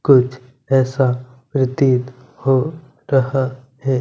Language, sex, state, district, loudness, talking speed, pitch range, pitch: Hindi, male, Punjab, Kapurthala, -18 LUFS, 90 wpm, 130-135 Hz, 130 Hz